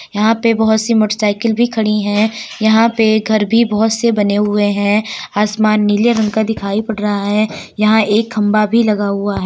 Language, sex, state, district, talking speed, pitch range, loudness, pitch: Hindi, female, Uttar Pradesh, Deoria, 205 wpm, 210-220 Hz, -14 LUFS, 215 Hz